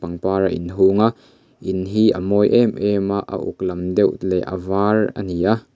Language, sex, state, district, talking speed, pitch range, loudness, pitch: Mizo, male, Mizoram, Aizawl, 230 wpm, 95-105 Hz, -19 LUFS, 95 Hz